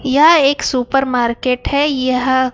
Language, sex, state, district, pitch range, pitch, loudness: Hindi, male, Chhattisgarh, Raipur, 255-280 Hz, 260 Hz, -14 LUFS